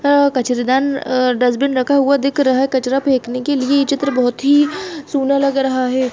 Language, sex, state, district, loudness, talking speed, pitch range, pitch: Hindi, female, Chhattisgarh, Bastar, -16 LUFS, 195 wpm, 255-280 Hz, 275 Hz